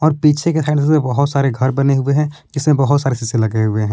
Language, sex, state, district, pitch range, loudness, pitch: Hindi, male, Jharkhand, Palamu, 130-150 Hz, -16 LUFS, 140 Hz